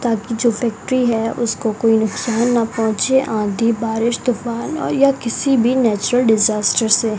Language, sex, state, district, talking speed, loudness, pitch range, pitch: Hindi, male, Rajasthan, Bikaner, 165 wpm, -17 LUFS, 220-245 Hz, 230 Hz